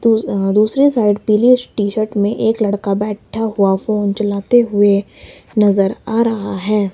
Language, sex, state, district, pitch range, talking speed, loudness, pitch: Hindi, male, Himachal Pradesh, Shimla, 200-225 Hz, 165 wpm, -15 LUFS, 210 Hz